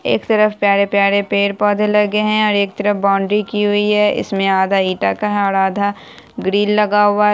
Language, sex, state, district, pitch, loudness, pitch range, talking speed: Hindi, female, Bihar, Saharsa, 205 Hz, -15 LUFS, 200-210 Hz, 195 wpm